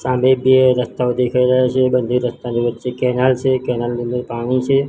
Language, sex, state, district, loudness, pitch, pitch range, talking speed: Gujarati, male, Gujarat, Gandhinagar, -17 LUFS, 125 Hz, 125-130 Hz, 195 wpm